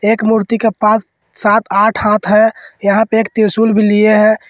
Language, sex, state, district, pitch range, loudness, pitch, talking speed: Hindi, male, Jharkhand, Ranchi, 210-225 Hz, -12 LUFS, 215 Hz, 200 wpm